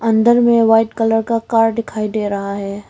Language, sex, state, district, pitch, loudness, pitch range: Hindi, female, Arunachal Pradesh, Longding, 225 Hz, -15 LUFS, 210-230 Hz